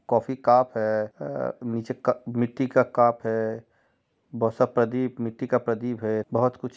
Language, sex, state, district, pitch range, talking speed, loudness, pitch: Hindi, male, Chhattisgarh, Raigarh, 115-125 Hz, 170 wpm, -25 LUFS, 120 Hz